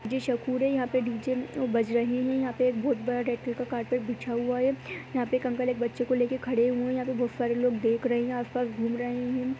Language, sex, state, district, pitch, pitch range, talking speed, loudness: Hindi, female, Uttar Pradesh, Budaun, 250 Hz, 240-255 Hz, 260 wpm, -28 LUFS